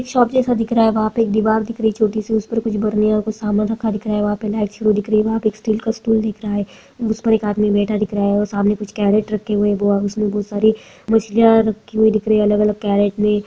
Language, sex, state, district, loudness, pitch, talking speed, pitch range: Hindi, female, Bihar, Purnia, -17 LUFS, 215 Hz, 295 wpm, 210-220 Hz